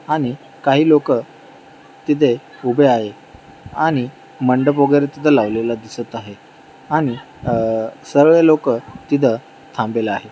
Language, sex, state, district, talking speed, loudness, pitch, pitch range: Marathi, male, Maharashtra, Dhule, 115 wpm, -17 LUFS, 135 Hz, 115-150 Hz